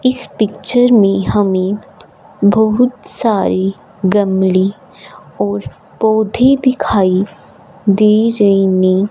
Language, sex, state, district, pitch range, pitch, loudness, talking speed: Hindi, female, Punjab, Fazilka, 190-220 Hz, 205 Hz, -13 LUFS, 90 wpm